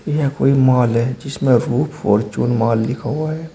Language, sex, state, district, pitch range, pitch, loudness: Hindi, male, Uttar Pradesh, Shamli, 120-150 Hz, 130 Hz, -17 LUFS